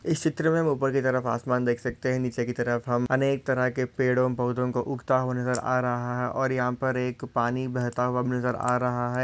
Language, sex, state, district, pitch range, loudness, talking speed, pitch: Hindi, male, Maharashtra, Solapur, 125-130 Hz, -26 LUFS, 240 wpm, 125 Hz